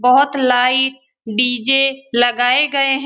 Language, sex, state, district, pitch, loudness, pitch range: Hindi, female, Bihar, Lakhisarai, 260 Hz, -15 LUFS, 245-270 Hz